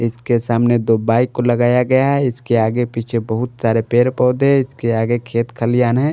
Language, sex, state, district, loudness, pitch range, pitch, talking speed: Hindi, male, Maharashtra, Washim, -16 LUFS, 115-125 Hz, 120 Hz, 195 wpm